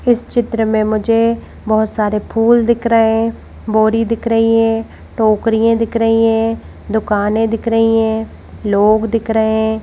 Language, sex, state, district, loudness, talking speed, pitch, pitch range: Hindi, female, Madhya Pradesh, Bhopal, -14 LUFS, 160 wpm, 225 Hz, 220-230 Hz